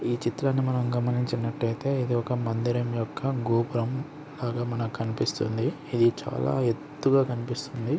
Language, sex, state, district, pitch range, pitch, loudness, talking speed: Telugu, male, Andhra Pradesh, Srikakulam, 115-135 Hz, 120 Hz, -28 LUFS, 120 wpm